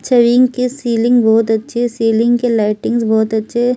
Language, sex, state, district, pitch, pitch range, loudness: Hindi, female, Delhi, New Delhi, 235 Hz, 225-245 Hz, -14 LUFS